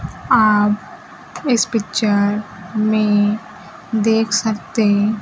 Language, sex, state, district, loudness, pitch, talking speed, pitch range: Hindi, female, Bihar, Kaimur, -17 LUFS, 215 Hz, 70 wpm, 205-220 Hz